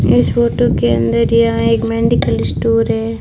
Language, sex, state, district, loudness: Hindi, female, Rajasthan, Bikaner, -14 LUFS